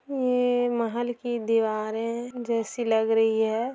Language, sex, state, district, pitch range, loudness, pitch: Hindi, male, Bihar, Sitamarhi, 225-245 Hz, -26 LUFS, 235 Hz